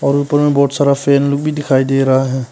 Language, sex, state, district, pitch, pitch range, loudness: Hindi, male, Arunachal Pradesh, Papum Pare, 140 Hz, 135-145 Hz, -14 LUFS